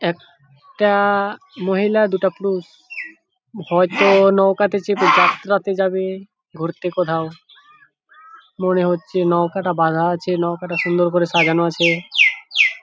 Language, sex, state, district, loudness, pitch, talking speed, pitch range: Bengali, male, West Bengal, Jhargram, -17 LUFS, 190 Hz, 115 wpm, 175-205 Hz